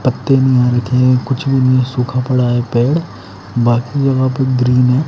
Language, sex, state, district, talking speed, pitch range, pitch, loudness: Hindi, male, Haryana, Charkhi Dadri, 200 wpm, 120-130 Hz, 125 Hz, -14 LUFS